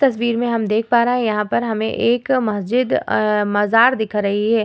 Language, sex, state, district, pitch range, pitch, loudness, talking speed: Hindi, female, Bihar, Vaishali, 210-240 Hz, 225 Hz, -18 LUFS, 230 wpm